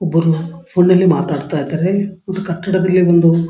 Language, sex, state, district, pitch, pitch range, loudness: Kannada, male, Karnataka, Dharwad, 175 Hz, 165-185 Hz, -15 LUFS